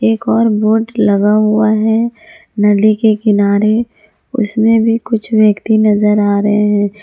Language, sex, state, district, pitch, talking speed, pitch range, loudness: Hindi, female, Jharkhand, Garhwa, 215 Hz, 145 wpm, 210-225 Hz, -12 LUFS